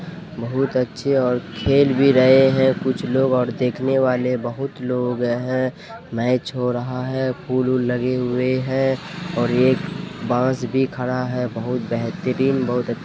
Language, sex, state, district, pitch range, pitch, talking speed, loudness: Hindi, male, Bihar, Purnia, 125-135 Hz, 130 Hz, 145 wpm, -20 LUFS